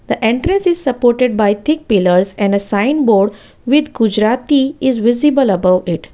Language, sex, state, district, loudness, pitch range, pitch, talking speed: English, female, Gujarat, Valsad, -14 LUFS, 205-275 Hz, 235 Hz, 165 wpm